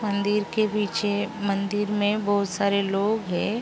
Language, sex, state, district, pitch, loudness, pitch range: Hindi, female, Uttar Pradesh, Jalaun, 205 Hz, -25 LUFS, 200-210 Hz